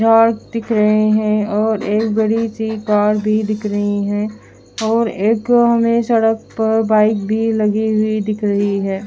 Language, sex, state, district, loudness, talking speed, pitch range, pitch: Hindi, female, Haryana, Charkhi Dadri, -16 LUFS, 165 wpm, 210-225 Hz, 215 Hz